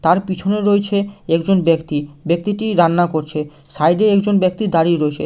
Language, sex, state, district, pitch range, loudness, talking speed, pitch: Bengali, male, West Bengal, Malda, 160-200 Hz, -16 LUFS, 150 wpm, 175 Hz